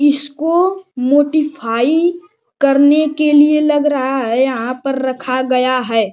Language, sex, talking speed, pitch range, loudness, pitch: Hindi, male, 125 wpm, 255-305 Hz, -14 LUFS, 280 Hz